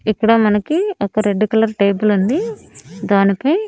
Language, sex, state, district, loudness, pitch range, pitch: Telugu, female, Andhra Pradesh, Annamaya, -16 LUFS, 205-280 Hz, 215 Hz